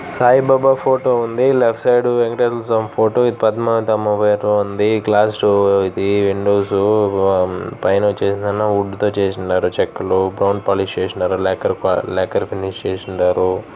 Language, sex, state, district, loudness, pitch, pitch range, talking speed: Telugu, male, Andhra Pradesh, Chittoor, -16 LUFS, 105 Hz, 100-115 Hz, 100 wpm